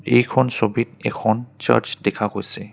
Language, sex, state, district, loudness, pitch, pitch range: Assamese, male, Assam, Kamrup Metropolitan, -21 LUFS, 120 Hz, 110-125 Hz